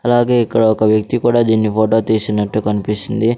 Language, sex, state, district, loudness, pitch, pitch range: Telugu, male, Andhra Pradesh, Sri Satya Sai, -15 LUFS, 110 Hz, 105-115 Hz